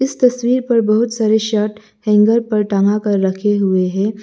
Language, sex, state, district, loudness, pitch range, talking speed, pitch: Hindi, male, Arunachal Pradesh, Lower Dibang Valley, -15 LUFS, 205-230 Hz, 185 wpm, 215 Hz